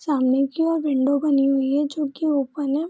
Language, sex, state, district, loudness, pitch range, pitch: Hindi, female, Bihar, Purnia, -21 LUFS, 275-300 Hz, 285 Hz